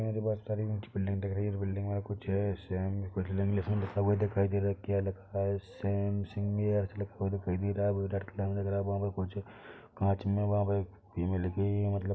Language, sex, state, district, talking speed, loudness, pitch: Hindi, male, Chhattisgarh, Bilaspur, 255 wpm, -33 LUFS, 100 Hz